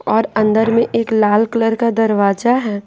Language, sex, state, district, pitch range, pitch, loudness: Hindi, female, Bihar, Patna, 210-230 Hz, 225 Hz, -15 LUFS